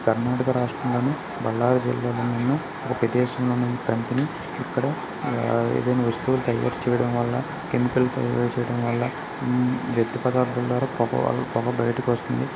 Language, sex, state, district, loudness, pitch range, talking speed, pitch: Telugu, male, Karnataka, Bellary, -24 LUFS, 120-125 Hz, 125 wpm, 125 Hz